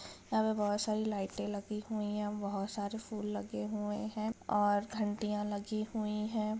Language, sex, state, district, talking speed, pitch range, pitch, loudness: Hindi, female, Bihar, Jamui, 175 wpm, 205-215 Hz, 210 Hz, -36 LUFS